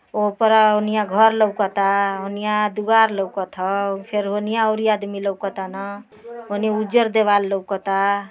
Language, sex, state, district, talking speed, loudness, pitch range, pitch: Bhojpuri, female, Uttar Pradesh, Ghazipur, 125 wpm, -19 LUFS, 195-215 Hz, 205 Hz